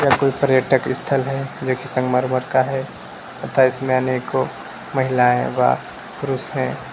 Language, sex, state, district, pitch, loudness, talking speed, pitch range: Hindi, male, Uttar Pradesh, Lucknow, 130 Hz, -19 LUFS, 145 wpm, 130-135 Hz